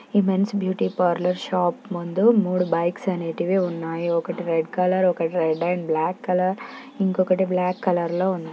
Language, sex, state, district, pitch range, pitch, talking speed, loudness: Telugu, female, Telangana, Nalgonda, 170-190 Hz, 180 Hz, 175 wpm, -23 LUFS